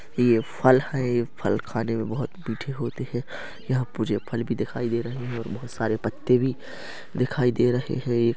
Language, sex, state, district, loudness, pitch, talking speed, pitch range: Hindi, male, Chhattisgarh, Rajnandgaon, -26 LUFS, 120 Hz, 210 wpm, 115-130 Hz